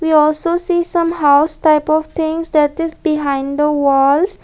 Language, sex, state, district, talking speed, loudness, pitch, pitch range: English, female, Assam, Kamrup Metropolitan, 175 wpm, -15 LUFS, 310 Hz, 295-330 Hz